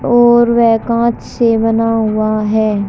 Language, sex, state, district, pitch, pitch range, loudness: Hindi, male, Haryana, Charkhi Dadri, 225 Hz, 215-235 Hz, -12 LUFS